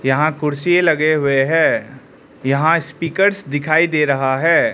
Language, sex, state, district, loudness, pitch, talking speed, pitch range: Hindi, male, Arunachal Pradesh, Lower Dibang Valley, -16 LUFS, 155 Hz, 140 wpm, 140-170 Hz